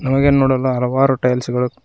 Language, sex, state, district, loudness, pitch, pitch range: Kannada, male, Karnataka, Koppal, -16 LUFS, 130 Hz, 125-135 Hz